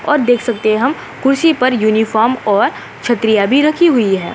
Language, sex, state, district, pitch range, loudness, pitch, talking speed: Hindi, female, Uttarakhand, Uttarkashi, 215-275 Hz, -13 LUFS, 240 Hz, 195 wpm